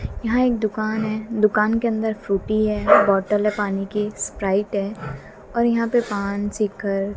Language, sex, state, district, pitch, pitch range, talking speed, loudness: Hindi, female, Haryana, Jhajjar, 210 Hz, 200-220 Hz, 165 wpm, -21 LUFS